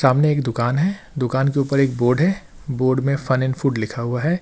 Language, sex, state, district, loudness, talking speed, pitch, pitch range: Hindi, male, Jharkhand, Ranchi, -20 LUFS, 245 wpm, 135 Hz, 125-145 Hz